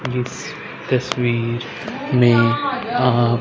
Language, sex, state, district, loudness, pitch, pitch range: Hindi, male, Haryana, Rohtak, -19 LUFS, 120 Hz, 120-125 Hz